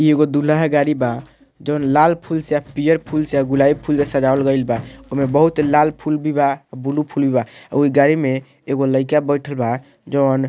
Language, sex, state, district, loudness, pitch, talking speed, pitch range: Bhojpuri, male, Bihar, Muzaffarpur, -18 LUFS, 145 Hz, 235 wpm, 135-150 Hz